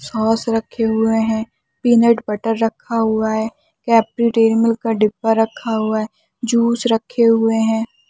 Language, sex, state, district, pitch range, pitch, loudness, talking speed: Hindi, male, Bihar, Bhagalpur, 220-235 Hz, 225 Hz, -17 LUFS, 155 wpm